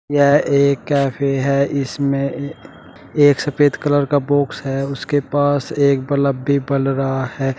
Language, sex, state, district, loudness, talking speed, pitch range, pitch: Hindi, male, Uttar Pradesh, Shamli, -17 LUFS, 150 wpm, 135-145 Hz, 140 Hz